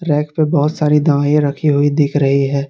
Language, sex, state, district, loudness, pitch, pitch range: Hindi, male, Jharkhand, Palamu, -14 LUFS, 145 Hz, 145-150 Hz